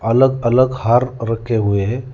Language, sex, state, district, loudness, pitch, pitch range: Hindi, male, Telangana, Hyderabad, -16 LUFS, 120 Hz, 115-130 Hz